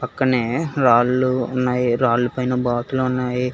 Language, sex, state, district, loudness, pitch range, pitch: Telugu, male, Telangana, Hyderabad, -19 LUFS, 125-130 Hz, 125 Hz